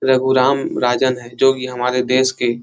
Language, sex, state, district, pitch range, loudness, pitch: Hindi, male, Bihar, Jahanabad, 125-130 Hz, -17 LUFS, 130 Hz